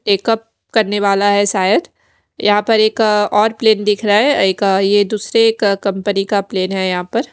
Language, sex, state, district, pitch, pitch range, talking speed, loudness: Hindi, female, Odisha, Khordha, 205 Hz, 200-220 Hz, 205 wpm, -14 LUFS